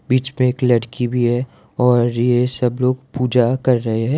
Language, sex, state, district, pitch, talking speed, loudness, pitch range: Hindi, male, Gujarat, Valsad, 125 Hz, 200 wpm, -17 LUFS, 120-130 Hz